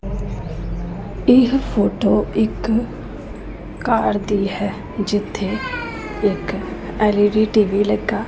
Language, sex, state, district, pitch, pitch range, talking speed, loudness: Punjabi, female, Punjab, Pathankot, 210 Hz, 205-220 Hz, 100 wpm, -19 LUFS